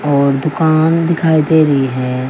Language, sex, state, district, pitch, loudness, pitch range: Hindi, female, Haryana, Jhajjar, 150 Hz, -13 LUFS, 135-160 Hz